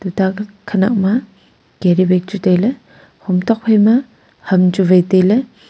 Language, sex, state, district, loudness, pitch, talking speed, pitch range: Wancho, female, Arunachal Pradesh, Longding, -14 LUFS, 195 Hz, 145 wpm, 185-220 Hz